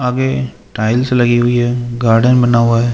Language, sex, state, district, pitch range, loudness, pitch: Hindi, male, Rajasthan, Jaipur, 120-125 Hz, -13 LUFS, 120 Hz